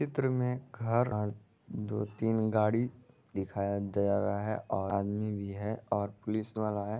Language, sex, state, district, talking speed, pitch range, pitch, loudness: Magahi, male, Bihar, Jahanabad, 155 wpm, 100-115 Hz, 105 Hz, -33 LUFS